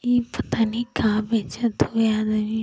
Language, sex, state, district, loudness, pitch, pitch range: Hindi, female, Uttar Pradesh, Ghazipur, -23 LUFS, 225 Hz, 215-235 Hz